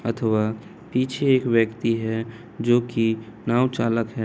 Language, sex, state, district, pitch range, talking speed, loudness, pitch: Hindi, male, Bihar, Kishanganj, 110-125 Hz, 140 wpm, -23 LUFS, 115 Hz